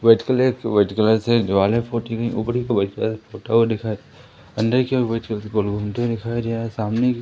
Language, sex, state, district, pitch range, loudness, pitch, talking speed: Hindi, male, Madhya Pradesh, Umaria, 110-120 Hz, -21 LUFS, 115 Hz, 240 wpm